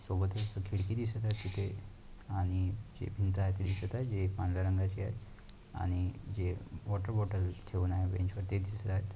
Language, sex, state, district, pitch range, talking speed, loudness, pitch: Marathi, male, Maharashtra, Aurangabad, 95-105 Hz, 170 wpm, -36 LUFS, 100 Hz